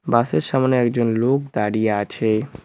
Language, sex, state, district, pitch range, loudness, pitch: Bengali, male, West Bengal, Cooch Behar, 110-130 Hz, -20 LUFS, 120 Hz